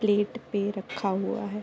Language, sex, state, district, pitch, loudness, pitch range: Hindi, female, Uttar Pradesh, Deoria, 205 Hz, -29 LUFS, 200-210 Hz